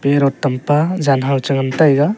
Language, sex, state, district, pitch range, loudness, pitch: Wancho, male, Arunachal Pradesh, Longding, 135-150 Hz, -16 LUFS, 140 Hz